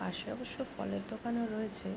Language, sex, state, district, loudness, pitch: Bengali, female, West Bengal, Jhargram, -38 LUFS, 215 Hz